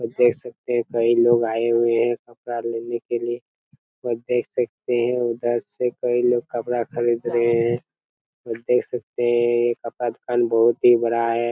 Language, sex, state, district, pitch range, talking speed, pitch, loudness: Hindi, male, Chhattisgarh, Raigarh, 115-120 Hz, 185 wpm, 120 Hz, -21 LUFS